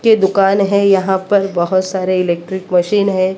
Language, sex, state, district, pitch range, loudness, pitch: Hindi, female, Maharashtra, Mumbai Suburban, 185-200 Hz, -14 LUFS, 190 Hz